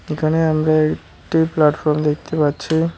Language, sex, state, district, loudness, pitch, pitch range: Bengali, male, West Bengal, Cooch Behar, -18 LUFS, 155 Hz, 150-160 Hz